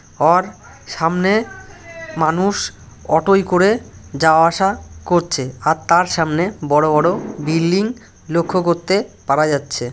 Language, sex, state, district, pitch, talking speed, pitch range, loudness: Bengali, male, West Bengal, North 24 Parganas, 170 Hz, 110 wpm, 155-190 Hz, -17 LUFS